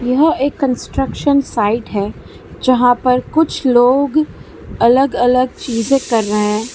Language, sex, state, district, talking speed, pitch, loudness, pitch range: Hindi, female, Gujarat, Valsad, 135 wpm, 250 Hz, -15 LUFS, 235-275 Hz